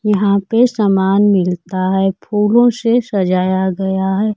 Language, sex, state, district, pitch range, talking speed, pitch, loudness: Hindi, female, Bihar, Kaimur, 190-215 Hz, 135 wpm, 200 Hz, -14 LUFS